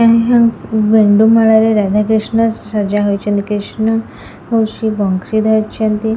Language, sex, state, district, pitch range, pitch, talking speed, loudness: Odia, female, Odisha, Khordha, 210-225 Hz, 220 Hz, 115 wpm, -13 LUFS